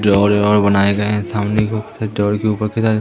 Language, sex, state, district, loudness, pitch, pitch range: Hindi, female, Madhya Pradesh, Umaria, -16 LUFS, 105 Hz, 105-110 Hz